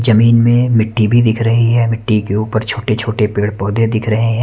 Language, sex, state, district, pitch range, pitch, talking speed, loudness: Hindi, male, Haryana, Charkhi Dadri, 110-115 Hz, 115 Hz, 230 wpm, -14 LUFS